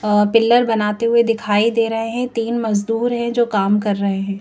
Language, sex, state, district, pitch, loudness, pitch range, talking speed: Hindi, female, Madhya Pradesh, Bhopal, 225 Hz, -17 LUFS, 210-235 Hz, 230 wpm